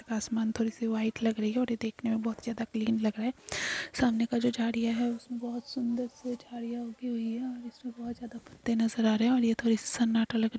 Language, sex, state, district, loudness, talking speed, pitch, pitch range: Hindi, female, Chhattisgarh, Bastar, -31 LUFS, 255 wpm, 235 Hz, 225-240 Hz